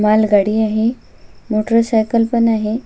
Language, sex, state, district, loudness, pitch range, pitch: Marathi, female, Maharashtra, Sindhudurg, -15 LUFS, 215-230 Hz, 220 Hz